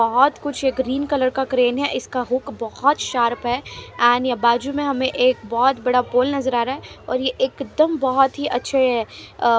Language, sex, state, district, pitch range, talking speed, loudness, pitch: Hindi, female, Haryana, Charkhi Dadri, 245-275 Hz, 205 wpm, -20 LUFS, 260 Hz